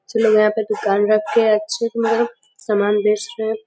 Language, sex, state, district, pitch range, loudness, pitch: Hindi, female, Uttar Pradesh, Gorakhpur, 210-230 Hz, -18 LUFS, 215 Hz